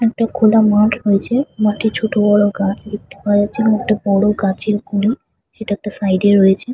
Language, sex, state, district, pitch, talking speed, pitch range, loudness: Bengali, female, West Bengal, Purulia, 210 Hz, 180 wpm, 205-220 Hz, -15 LUFS